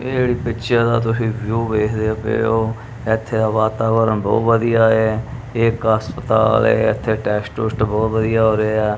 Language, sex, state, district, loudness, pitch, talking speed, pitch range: Punjabi, male, Punjab, Kapurthala, -18 LUFS, 110 Hz, 175 wpm, 110-115 Hz